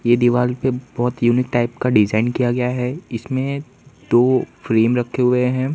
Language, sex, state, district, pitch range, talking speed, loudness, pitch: Hindi, male, Gujarat, Valsad, 120-130 Hz, 175 wpm, -19 LUFS, 125 Hz